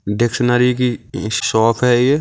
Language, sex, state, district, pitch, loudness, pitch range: Hindi, male, Maharashtra, Aurangabad, 120 Hz, -16 LUFS, 110-125 Hz